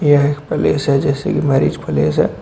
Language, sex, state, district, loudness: Hindi, male, Uttar Pradesh, Shamli, -16 LUFS